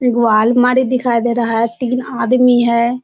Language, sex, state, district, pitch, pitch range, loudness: Hindi, female, Bihar, Kishanganj, 245 Hz, 235-250 Hz, -14 LUFS